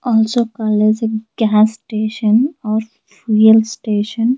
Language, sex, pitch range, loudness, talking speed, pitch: English, female, 215-225 Hz, -15 LUFS, 110 wpm, 220 Hz